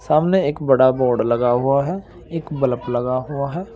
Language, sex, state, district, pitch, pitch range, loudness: Hindi, male, Uttar Pradesh, Saharanpur, 140 Hz, 125-155 Hz, -19 LUFS